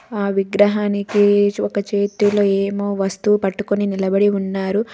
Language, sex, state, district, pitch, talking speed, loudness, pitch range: Telugu, female, Telangana, Hyderabad, 200 Hz, 110 wpm, -18 LUFS, 195-205 Hz